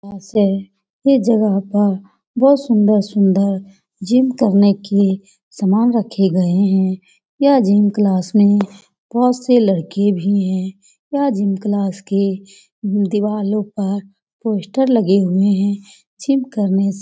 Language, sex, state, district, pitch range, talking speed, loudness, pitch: Hindi, female, Bihar, Lakhisarai, 195-215 Hz, 130 wpm, -16 LUFS, 200 Hz